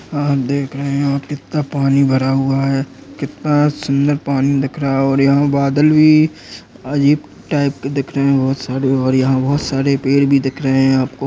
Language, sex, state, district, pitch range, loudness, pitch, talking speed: Hindi, female, Uttar Pradesh, Jalaun, 135-145 Hz, -15 LUFS, 140 Hz, 195 wpm